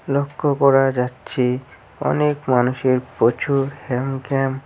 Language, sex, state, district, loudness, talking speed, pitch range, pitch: Bengali, male, West Bengal, Cooch Behar, -20 LUFS, 75 wpm, 125-140 Hz, 135 Hz